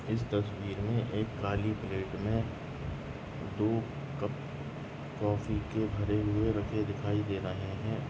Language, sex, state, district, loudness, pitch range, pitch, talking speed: Hindi, male, Chhattisgarh, Rajnandgaon, -34 LUFS, 105-115 Hz, 110 Hz, 135 wpm